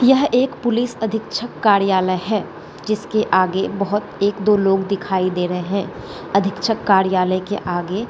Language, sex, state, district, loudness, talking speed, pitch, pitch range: Hindi, female, Bihar, Gopalganj, -19 LUFS, 155 wpm, 200 Hz, 190-215 Hz